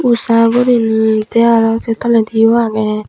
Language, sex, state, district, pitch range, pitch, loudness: Chakma, female, Tripura, Unakoti, 220-235 Hz, 225 Hz, -12 LUFS